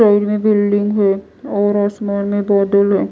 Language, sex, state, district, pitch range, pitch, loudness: Hindi, female, Odisha, Malkangiri, 200-205 Hz, 205 Hz, -16 LUFS